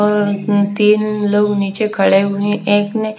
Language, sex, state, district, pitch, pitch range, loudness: Hindi, female, Haryana, Charkhi Dadri, 205 Hz, 200-210 Hz, -15 LUFS